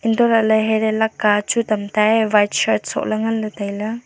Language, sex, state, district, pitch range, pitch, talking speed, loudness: Wancho, female, Arunachal Pradesh, Longding, 210-225 Hz, 220 Hz, 160 wpm, -18 LUFS